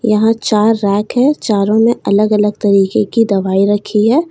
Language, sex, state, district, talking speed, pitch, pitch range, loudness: Hindi, female, Uttar Pradesh, Lalitpur, 180 wpm, 215 Hz, 205-225 Hz, -13 LUFS